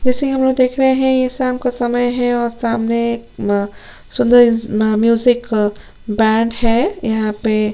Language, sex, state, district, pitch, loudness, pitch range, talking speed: Hindi, female, Chhattisgarh, Sukma, 235 Hz, -16 LUFS, 220-250 Hz, 180 wpm